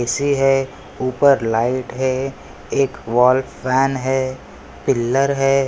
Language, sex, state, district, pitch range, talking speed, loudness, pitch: Hindi, male, Maharashtra, Pune, 125-135 Hz, 115 wpm, -18 LUFS, 130 Hz